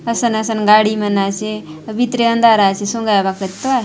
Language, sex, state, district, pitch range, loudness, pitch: Halbi, female, Chhattisgarh, Bastar, 200-230 Hz, -15 LUFS, 215 Hz